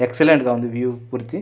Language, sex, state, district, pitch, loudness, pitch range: Telugu, male, Andhra Pradesh, Anantapur, 125 Hz, -19 LUFS, 120-125 Hz